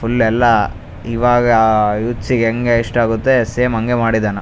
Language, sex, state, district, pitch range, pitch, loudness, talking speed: Kannada, male, Karnataka, Raichur, 110-120 Hz, 115 Hz, -15 LUFS, 165 wpm